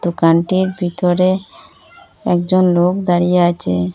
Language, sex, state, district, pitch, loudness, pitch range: Bengali, female, Assam, Hailakandi, 175 Hz, -15 LUFS, 175-185 Hz